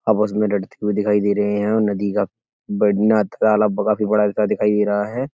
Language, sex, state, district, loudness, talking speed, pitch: Hindi, male, Uttar Pradesh, Etah, -19 LUFS, 190 wpm, 105 Hz